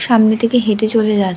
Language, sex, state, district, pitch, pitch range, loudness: Bengali, female, West Bengal, Dakshin Dinajpur, 220 Hz, 215-230 Hz, -14 LUFS